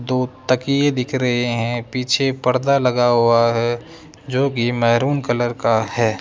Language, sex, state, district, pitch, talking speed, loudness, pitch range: Hindi, male, Rajasthan, Jaipur, 125 Hz, 145 wpm, -18 LUFS, 120-135 Hz